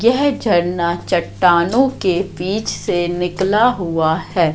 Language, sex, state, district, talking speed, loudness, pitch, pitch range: Hindi, female, Madhya Pradesh, Katni, 120 wpm, -17 LUFS, 180 Hz, 170-210 Hz